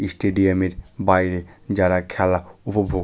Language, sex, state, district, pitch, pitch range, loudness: Bengali, male, West Bengal, Malda, 95 Hz, 90-100 Hz, -21 LUFS